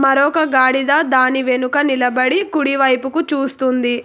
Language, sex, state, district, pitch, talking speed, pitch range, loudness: Telugu, female, Telangana, Hyderabad, 270 Hz, 120 wpm, 255-290 Hz, -15 LUFS